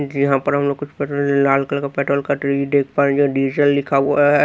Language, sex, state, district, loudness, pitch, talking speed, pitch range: Hindi, male, Bihar, Katihar, -18 LUFS, 140 Hz, 215 wpm, 140-145 Hz